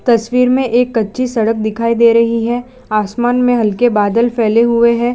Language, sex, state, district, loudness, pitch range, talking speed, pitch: Hindi, female, Gujarat, Valsad, -13 LUFS, 225-245 Hz, 185 wpm, 235 Hz